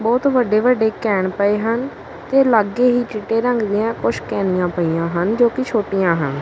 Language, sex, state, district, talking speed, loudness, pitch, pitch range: Punjabi, male, Punjab, Kapurthala, 185 wpm, -18 LUFS, 215 Hz, 190-240 Hz